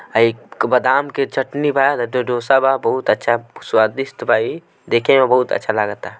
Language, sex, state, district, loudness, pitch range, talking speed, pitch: Hindi, male, Bihar, Gopalganj, -17 LUFS, 120-135 Hz, 175 wpm, 135 Hz